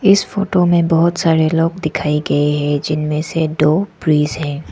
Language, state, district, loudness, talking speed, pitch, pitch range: Hindi, Arunachal Pradesh, Lower Dibang Valley, -16 LUFS, 180 wpm, 160 Hz, 150-170 Hz